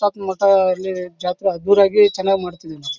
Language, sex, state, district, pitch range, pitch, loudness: Kannada, male, Karnataka, Bellary, 180-200 Hz, 190 Hz, -17 LUFS